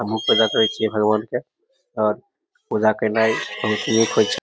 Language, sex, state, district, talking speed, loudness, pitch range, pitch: Maithili, male, Bihar, Samastipur, 175 wpm, -20 LUFS, 110-140 Hz, 110 Hz